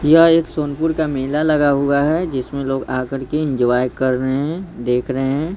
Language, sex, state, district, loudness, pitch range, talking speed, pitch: Hindi, male, Bihar, Patna, -18 LUFS, 130-155 Hz, 185 wpm, 140 Hz